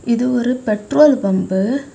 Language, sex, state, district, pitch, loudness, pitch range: Tamil, female, Tamil Nadu, Kanyakumari, 245 Hz, -16 LUFS, 210-265 Hz